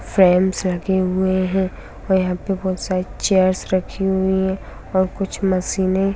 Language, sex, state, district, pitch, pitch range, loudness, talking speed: Hindi, female, Bihar, Samastipur, 190 Hz, 185-190 Hz, -19 LUFS, 165 wpm